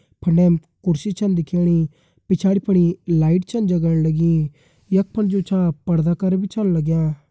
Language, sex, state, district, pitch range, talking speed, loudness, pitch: Garhwali, male, Uttarakhand, Tehri Garhwal, 165-190 Hz, 155 wpm, -19 LUFS, 175 Hz